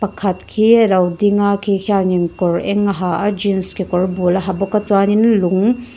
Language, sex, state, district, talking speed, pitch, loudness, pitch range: Mizo, female, Mizoram, Aizawl, 210 wpm, 195 Hz, -15 LUFS, 185-210 Hz